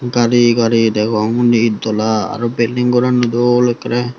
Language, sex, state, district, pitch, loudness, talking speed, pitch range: Chakma, male, Tripura, Unakoti, 120 Hz, -14 LUFS, 170 wpm, 115-120 Hz